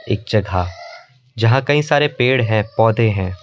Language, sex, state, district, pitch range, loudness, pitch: Hindi, male, Delhi, New Delhi, 105-130 Hz, -17 LUFS, 115 Hz